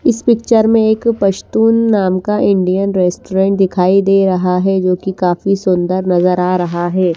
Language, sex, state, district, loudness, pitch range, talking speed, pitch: Hindi, female, Haryana, Charkhi Dadri, -13 LUFS, 180-210 Hz, 185 wpm, 190 Hz